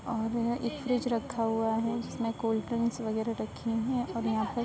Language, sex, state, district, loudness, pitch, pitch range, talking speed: Hindi, female, Uttar Pradesh, Muzaffarnagar, -31 LUFS, 230 Hz, 225-235 Hz, 205 wpm